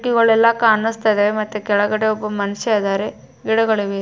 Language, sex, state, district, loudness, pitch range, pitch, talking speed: Kannada, female, Karnataka, Bijapur, -17 LUFS, 205-225 Hz, 215 Hz, 135 wpm